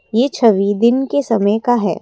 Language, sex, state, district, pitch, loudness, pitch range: Hindi, female, Assam, Kamrup Metropolitan, 230 Hz, -15 LUFS, 210-250 Hz